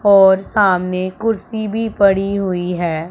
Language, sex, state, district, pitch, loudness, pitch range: Hindi, male, Punjab, Pathankot, 195 Hz, -16 LUFS, 185-215 Hz